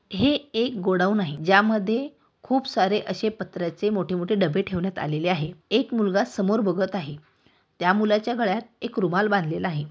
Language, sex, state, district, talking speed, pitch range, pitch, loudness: Marathi, female, Maharashtra, Aurangabad, 155 wpm, 185-220 Hz, 200 Hz, -24 LUFS